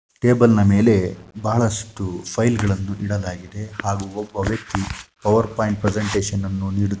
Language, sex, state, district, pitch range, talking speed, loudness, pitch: Kannada, male, Karnataka, Shimoga, 100-110 Hz, 130 wpm, -21 LUFS, 105 Hz